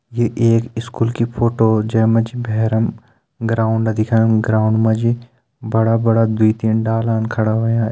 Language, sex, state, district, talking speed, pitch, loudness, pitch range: Hindi, male, Uttarakhand, Uttarkashi, 160 wpm, 115 Hz, -17 LUFS, 110-115 Hz